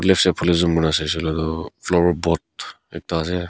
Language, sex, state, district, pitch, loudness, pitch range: Nagamese, male, Nagaland, Kohima, 85 Hz, -20 LUFS, 80-90 Hz